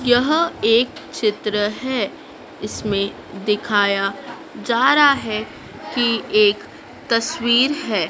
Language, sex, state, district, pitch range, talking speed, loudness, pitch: Hindi, female, Madhya Pradesh, Dhar, 210-265 Hz, 95 wpm, -19 LUFS, 235 Hz